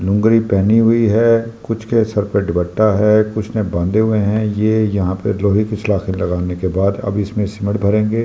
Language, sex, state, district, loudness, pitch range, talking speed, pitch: Hindi, male, Delhi, New Delhi, -16 LUFS, 100-110 Hz, 205 wpm, 105 Hz